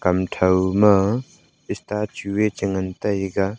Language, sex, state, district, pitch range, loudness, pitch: Wancho, male, Arunachal Pradesh, Longding, 95-105 Hz, -21 LUFS, 100 Hz